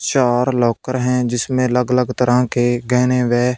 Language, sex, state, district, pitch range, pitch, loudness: Hindi, male, Punjab, Fazilka, 120-125 Hz, 125 Hz, -17 LUFS